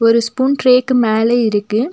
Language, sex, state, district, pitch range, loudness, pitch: Tamil, female, Tamil Nadu, Nilgiris, 225-255 Hz, -14 LUFS, 235 Hz